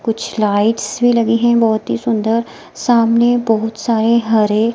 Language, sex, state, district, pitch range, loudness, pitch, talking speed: Hindi, female, Himachal Pradesh, Shimla, 220-235 Hz, -15 LUFS, 230 Hz, 150 wpm